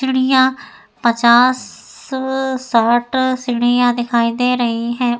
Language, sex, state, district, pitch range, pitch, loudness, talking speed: Hindi, female, Uttar Pradesh, Etah, 240-260 Hz, 245 Hz, -15 LUFS, 90 wpm